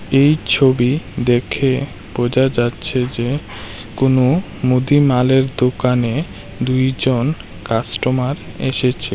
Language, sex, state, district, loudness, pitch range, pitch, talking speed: Bengali, male, Tripura, West Tripura, -17 LUFS, 120-135 Hz, 130 Hz, 80 wpm